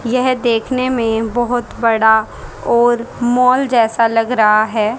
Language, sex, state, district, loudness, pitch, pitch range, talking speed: Hindi, female, Haryana, Rohtak, -14 LUFS, 235 Hz, 225-250 Hz, 130 wpm